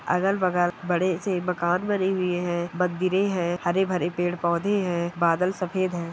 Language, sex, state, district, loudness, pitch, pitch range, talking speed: Hindi, female, Bihar, Gaya, -25 LUFS, 180 Hz, 175-185 Hz, 145 wpm